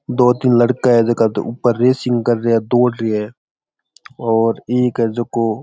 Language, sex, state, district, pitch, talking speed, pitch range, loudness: Rajasthani, male, Rajasthan, Churu, 120 Hz, 160 wpm, 115-125 Hz, -16 LUFS